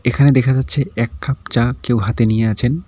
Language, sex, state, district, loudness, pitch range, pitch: Bengali, male, West Bengal, Cooch Behar, -16 LUFS, 115-135 Hz, 125 Hz